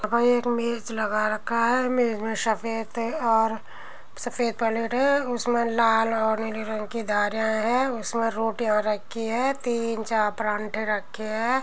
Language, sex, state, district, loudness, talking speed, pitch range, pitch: Hindi, female, Uttar Pradesh, Muzaffarnagar, -25 LUFS, 145 wpm, 220-235 Hz, 225 Hz